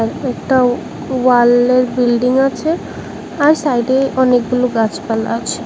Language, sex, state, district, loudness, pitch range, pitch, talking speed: Bengali, male, Tripura, West Tripura, -14 LUFS, 240-265 Hz, 250 Hz, 105 wpm